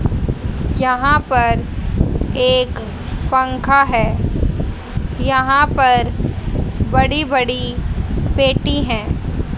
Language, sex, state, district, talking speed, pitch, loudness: Hindi, female, Haryana, Jhajjar, 70 wpm, 240 Hz, -17 LUFS